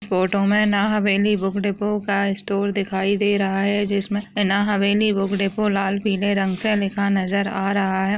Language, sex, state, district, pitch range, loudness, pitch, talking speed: Hindi, female, Maharashtra, Chandrapur, 195-205 Hz, -21 LUFS, 200 Hz, 160 wpm